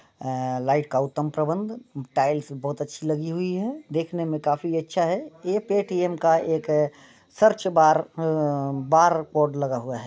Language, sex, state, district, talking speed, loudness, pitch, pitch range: Hindi, male, Bihar, Muzaffarpur, 165 wpm, -24 LUFS, 155 Hz, 145-170 Hz